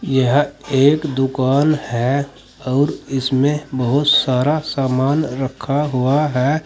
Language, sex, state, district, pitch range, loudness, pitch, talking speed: Hindi, male, Uttar Pradesh, Saharanpur, 130-145 Hz, -17 LUFS, 140 Hz, 110 wpm